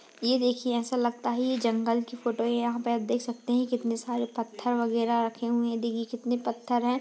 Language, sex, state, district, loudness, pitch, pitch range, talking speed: Hindi, female, Uttar Pradesh, Budaun, -29 LUFS, 240 Hz, 235-245 Hz, 230 wpm